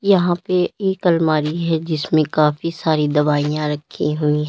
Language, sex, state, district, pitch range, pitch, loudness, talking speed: Hindi, female, Uttar Pradesh, Lalitpur, 150-175 Hz, 155 Hz, -18 LUFS, 160 wpm